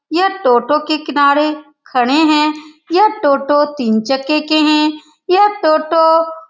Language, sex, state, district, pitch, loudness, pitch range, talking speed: Hindi, female, Bihar, Saran, 305 Hz, -13 LUFS, 290-320 Hz, 140 wpm